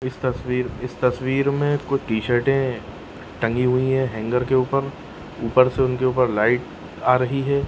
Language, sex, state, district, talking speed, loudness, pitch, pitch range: Hindi, male, Bihar, Jahanabad, 165 wpm, -21 LUFS, 125 Hz, 120-135 Hz